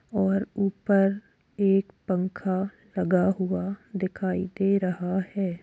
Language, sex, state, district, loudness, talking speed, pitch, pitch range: Hindi, female, Chhattisgarh, Kabirdham, -26 LUFS, 105 wpm, 195 Hz, 185-200 Hz